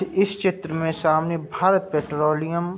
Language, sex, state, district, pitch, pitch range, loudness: Hindi, male, Uttar Pradesh, Budaun, 165 Hz, 155-190 Hz, -22 LUFS